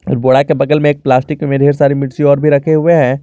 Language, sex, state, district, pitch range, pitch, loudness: Hindi, male, Jharkhand, Garhwa, 135-150 Hz, 145 Hz, -11 LUFS